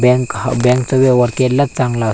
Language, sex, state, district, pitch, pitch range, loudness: Marathi, male, Maharashtra, Aurangabad, 125 Hz, 125-130 Hz, -14 LUFS